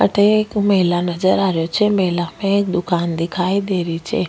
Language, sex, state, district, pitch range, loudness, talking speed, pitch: Rajasthani, female, Rajasthan, Nagaur, 175-200 Hz, -18 LUFS, 210 wpm, 185 Hz